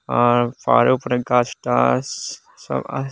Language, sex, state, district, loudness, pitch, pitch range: Bengali, male, Tripura, Unakoti, -19 LUFS, 120 Hz, 120-125 Hz